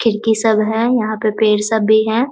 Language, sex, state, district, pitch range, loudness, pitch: Hindi, female, Bihar, Muzaffarpur, 215-225 Hz, -15 LUFS, 220 Hz